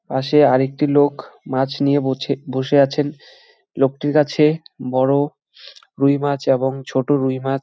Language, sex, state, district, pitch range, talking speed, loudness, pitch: Bengali, male, West Bengal, Jalpaiguri, 130-145 Hz, 140 wpm, -18 LUFS, 140 Hz